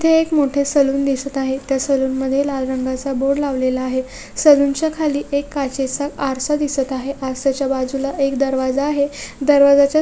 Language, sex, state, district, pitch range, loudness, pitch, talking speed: Marathi, female, Maharashtra, Solapur, 265-285 Hz, -18 LUFS, 275 Hz, 155 wpm